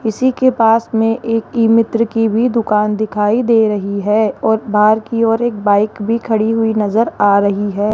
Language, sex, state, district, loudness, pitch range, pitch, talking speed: Hindi, female, Rajasthan, Jaipur, -14 LUFS, 210-230 Hz, 220 Hz, 195 wpm